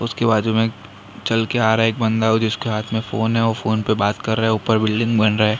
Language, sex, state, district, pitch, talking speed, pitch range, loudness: Hindi, male, Maharashtra, Mumbai Suburban, 110 Hz, 290 wpm, 110-115 Hz, -19 LUFS